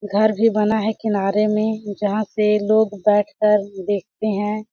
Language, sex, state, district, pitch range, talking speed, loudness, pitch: Hindi, female, Chhattisgarh, Balrampur, 205-215 Hz, 150 wpm, -19 LUFS, 210 Hz